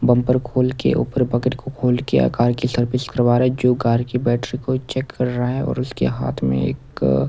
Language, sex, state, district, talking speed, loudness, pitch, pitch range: Hindi, male, Odisha, Nuapada, 240 wpm, -20 LUFS, 125 Hz, 120-125 Hz